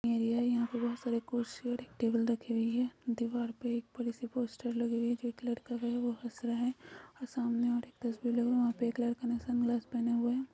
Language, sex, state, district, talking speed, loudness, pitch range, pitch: Hindi, female, Chhattisgarh, Jashpur, 225 wpm, -35 LUFS, 235-245 Hz, 240 Hz